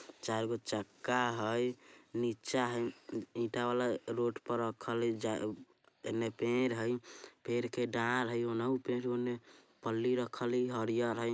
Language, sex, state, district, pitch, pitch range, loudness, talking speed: Bajjika, male, Bihar, Vaishali, 120 Hz, 115-125 Hz, -36 LUFS, 125 wpm